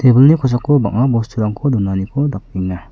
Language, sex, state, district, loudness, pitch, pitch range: Garo, male, Meghalaya, South Garo Hills, -15 LUFS, 120 Hz, 100-135 Hz